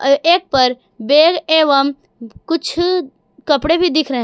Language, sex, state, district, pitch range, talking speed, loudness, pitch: Hindi, female, Jharkhand, Garhwa, 260-330 Hz, 140 wpm, -14 LUFS, 285 Hz